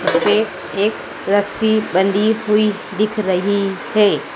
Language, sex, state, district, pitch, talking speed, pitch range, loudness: Hindi, female, Madhya Pradesh, Dhar, 210 Hz, 110 wpm, 200-215 Hz, -17 LUFS